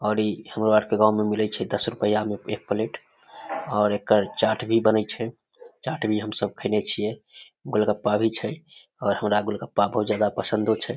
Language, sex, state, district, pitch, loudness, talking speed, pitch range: Maithili, male, Bihar, Samastipur, 105 Hz, -24 LUFS, 195 wpm, 105-110 Hz